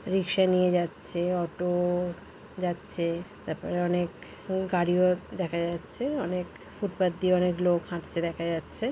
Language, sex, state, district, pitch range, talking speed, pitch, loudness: Bengali, female, West Bengal, Paschim Medinipur, 175-185 Hz, 120 wpm, 180 Hz, -29 LUFS